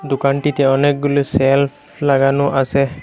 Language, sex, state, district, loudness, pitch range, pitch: Bengali, male, Assam, Hailakandi, -16 LUFS, 135-145 Hz, 140 Hz